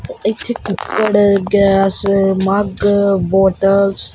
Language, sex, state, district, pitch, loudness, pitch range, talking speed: Punjabi, male, Punjab, Kapurthala, 195 Hz, -14 LUFS, 195-205 Hz, 85 wpm